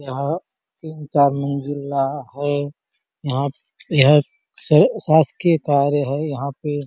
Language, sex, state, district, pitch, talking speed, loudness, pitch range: Hindi, male, Chhattisgarh, Bastar, 145 Hz, 120 wpm, -19 LUFS, 140-150 Hz